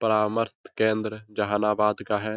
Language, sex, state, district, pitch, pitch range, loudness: Hindi, male, Bihar, Jahanabad, 110 Hz, 105-110 Hz, -26 LUFS